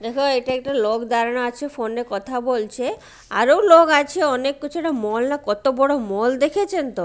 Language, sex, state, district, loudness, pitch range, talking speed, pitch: Bengali, female, Odisha, Malkangiri, -20 LUFS, 230-290 Hz, 180 wpm, 255 Hz